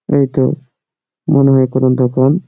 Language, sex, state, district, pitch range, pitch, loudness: Bengali, male, West Bengal, Malda, 130-140 Hz, 130 Hz, -13 LUFS